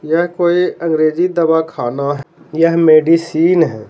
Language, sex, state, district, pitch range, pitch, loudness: Hindi, male, Bihar, Patna, 155-170 Hz, 165 Hz, -14 LUFS